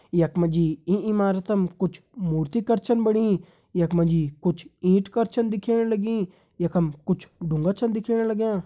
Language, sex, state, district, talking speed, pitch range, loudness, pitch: Hindi, male, Uttarakhand, Tehri Garhwal, 175 wpm, 170-220 Hz, -24 LUFS, 185 Hz